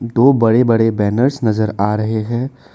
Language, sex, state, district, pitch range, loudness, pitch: Hindi, male, Assam, Kamrup Metropolitan, 110-120 Hz, -15 LUFS, 115 Hz